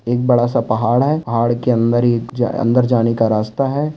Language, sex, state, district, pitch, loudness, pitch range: Hindi, male, Andhra Pradesh, Anantapur, 120 Hz, -16 LUFS, 115-125 Hz